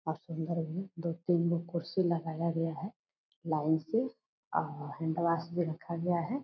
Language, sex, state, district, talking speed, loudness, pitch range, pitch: Hindi, female, Bihar, Purnia, 175 wpm, -34 LUFS, 160-175 Hz, 170 Hz